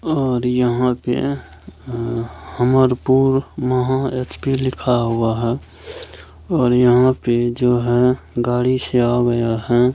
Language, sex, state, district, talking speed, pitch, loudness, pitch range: Hindi, male, Bihar, Kishanganj, 125 wpm, 125 Hz, -18 LUFS, 120-130 Hz